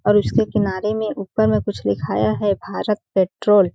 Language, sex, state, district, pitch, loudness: Hindi, female, Chhattisgarh, Balrampur, 195 Hz, -20 LUFS